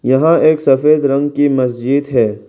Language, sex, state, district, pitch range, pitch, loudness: Hindi, male, Arunachal Pradesh, Lower Dibang Valley, 130-145 Hz, 140 Hz, -13 LUFS